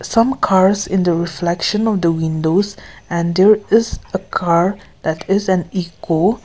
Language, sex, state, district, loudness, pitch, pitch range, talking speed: English, female, Nagaland, Kohima, -17 LUFS, 185 Hz, 170-205 Hz, 150 wpm